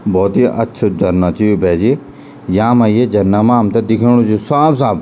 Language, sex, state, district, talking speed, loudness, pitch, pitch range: Garhwali, male, Uttarakhand, Tehri Garhwal, 190 wpm, -12 LUFS, 110 Hz, 105-120 Hz